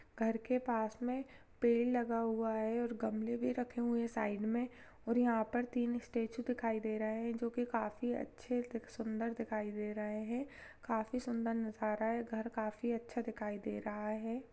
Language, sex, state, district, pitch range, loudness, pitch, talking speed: Hindi, female, Chhattisgarh, Jashpur, 220-240 Hz, -38 LUFS, 230 Hz, 185 wpm